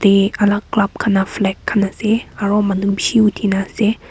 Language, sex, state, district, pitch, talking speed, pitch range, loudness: Nagamese, female, Nagaland, Kohima, 205 Hz, 190 wpm, 195-215 Hz, -17 LUFS